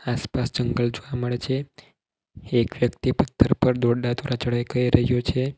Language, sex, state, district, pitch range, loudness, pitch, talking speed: Gujarati, male, Gujarat, Valsad, 120-130 Hz, -23 LUFS, 125 Hz, 160 wpm